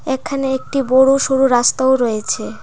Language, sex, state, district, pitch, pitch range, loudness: Bengali, female, Tripura, Dhalai, 265 Hz, 255-270 Hz, -15 LUFS